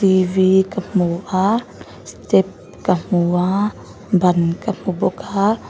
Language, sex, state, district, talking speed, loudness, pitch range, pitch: Mizo, female, Mizoram, Aizawl, 125 wpm, -18 LUFS, 180-200 Hz, 185 Hz